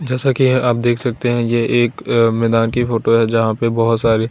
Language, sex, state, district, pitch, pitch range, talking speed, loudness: Hindi, male, Bihar, Kaimur, 115 Hz, 115-120 Hz, 225 wpm, -16 LUFS